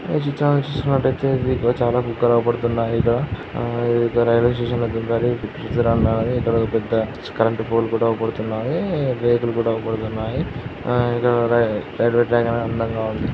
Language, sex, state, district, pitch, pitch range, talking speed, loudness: Telugu, male, Andhra Pradesh, Guntur, 120 Hz, 115-125 Hz, 115 wpm, -20 LUFS